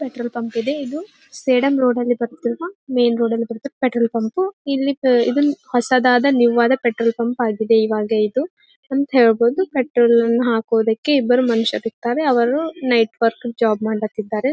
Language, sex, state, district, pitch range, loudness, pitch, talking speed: Kannada, female, Karnataka, Gulbarga, 230-275 Hz, -18 LUFS, 245 Hz, 155 wpm